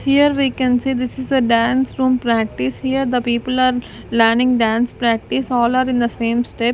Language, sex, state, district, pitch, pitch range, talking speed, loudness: English, female, Maharashtra, Gondia, 245 Hz, 235-260 Hz, 205 wpm, -17 LUFS